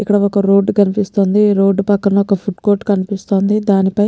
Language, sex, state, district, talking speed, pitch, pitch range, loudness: Telugu, female, Telangana, Nalgonda, 175 wpm, 200 Hz, 195-205 Hz, -14 LUFS